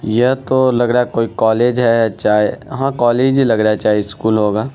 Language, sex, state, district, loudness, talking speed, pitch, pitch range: Hindi, male, Bihar, Araria, -15 LUFS, 215 wpm, 115 Hz, 110-130 Hz